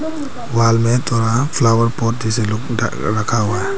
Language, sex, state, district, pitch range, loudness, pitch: Hindi, male, Arunachal Pradesh, Papum Pare, 115-120 Hz, -17 LUFS, 115 Hz